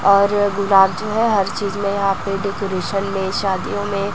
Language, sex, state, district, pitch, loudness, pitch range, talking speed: Hindi, female, Chhattisgarh, Raipur, 200 Hz, -18 LUFS, 195-205 Hz, 190 wpm